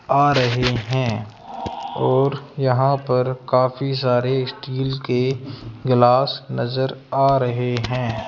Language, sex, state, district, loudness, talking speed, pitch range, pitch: Hindi, male, Rajasthan, Jaipur, -20 LUFS, 110 wpm, 125-135 Hz, 130 Hz